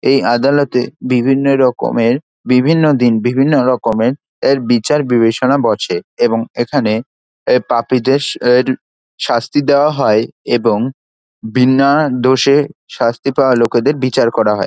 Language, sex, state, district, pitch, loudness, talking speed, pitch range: Bengali, male, West Bengal, Dakshin Dinajpur, 130 Hz, -13 LUFS, 120 wpm, 120-140 Hz